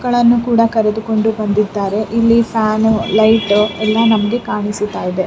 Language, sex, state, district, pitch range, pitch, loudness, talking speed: Kannada, female, Karnataka, Raichur, 210-230 Hz, 220 Hz, -14 LUFS, 135 wpm